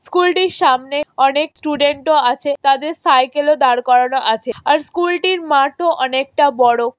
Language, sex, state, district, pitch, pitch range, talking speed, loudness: Bengali, female, West Bengal, Jhargram, 285 Hz, 260-315 Hz, 155 wpm, -15 LUFS